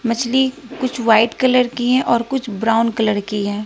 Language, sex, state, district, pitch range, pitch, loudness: Hindi, female, Bihar, West Champaran, 220-255 Hz, 235 Hz, -17 LUFS